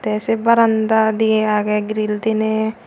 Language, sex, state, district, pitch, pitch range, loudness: Chakma, female, Tripura, Unakoti, 220 Hz, 215-220 Hz, -17 LUFS